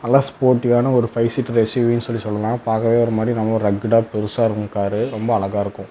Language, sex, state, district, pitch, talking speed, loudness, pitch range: Tamil, male, Tamil Nadu, Namakkal, 115 Hz, 195 wpm, -19 LUFS, 105-120 Hz